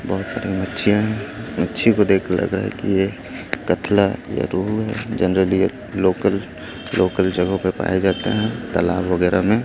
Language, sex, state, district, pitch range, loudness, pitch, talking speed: Hindi, male, Chhattisgarh, Raipur, 95-105 Hz, -20 LUFS, 95 Hz, 175 wpm